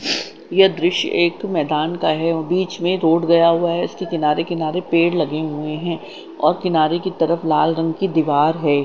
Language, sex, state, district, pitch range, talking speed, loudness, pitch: Hindi, female, Chandigarh, Chandigarh, 155-175 Hz, 205 wpm, -18 LUFS, 165 Hz